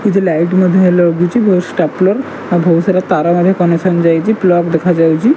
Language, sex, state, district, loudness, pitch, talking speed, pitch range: Odia, male, Odisha, Malkangiri, -12 LUFS, 180 Hz, 180 wpm, 170-190 Hz